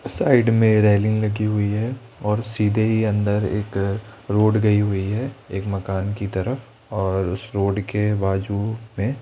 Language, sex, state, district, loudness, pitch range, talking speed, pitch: Hindi, male, Rajasthan, Jaipur, -21 LUFS, 100-110 Hz, 170 wpm, 105 Hz